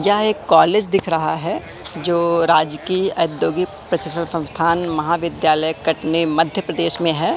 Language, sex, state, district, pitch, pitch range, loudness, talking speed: Hindi, male, Madhya Pradesh, Katni, 170 Hz, 160-180 Hz, -18 LUFS, 140 wpm